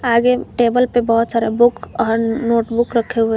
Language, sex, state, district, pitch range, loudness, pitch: Hindi, female, Jharkhand, Garhwa, 230-240 Hz, -16 LUFS, 235 Hz